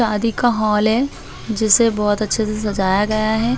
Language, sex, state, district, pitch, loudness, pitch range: Hindi, female, Chhattisgarh, Bastar, 215 Hz, -17 LUFS, 210-230 Hz